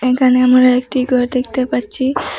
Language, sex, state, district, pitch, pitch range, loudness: Bengali, female, Assam, Hailakandi, 255 Hz, 250-260 Hz, -14 LUFS